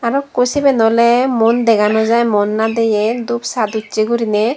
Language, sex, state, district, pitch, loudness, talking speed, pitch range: Chakma, female, Tripura, Dhalai, 230 Hz, -14 LUFS, 185 wpm, 220-240 Hz